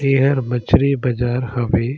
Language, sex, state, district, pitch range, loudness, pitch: Surgujia, male, Chhattisgarh, Sarguja, 120-135 Hz, -18 LUFS, 125 Hz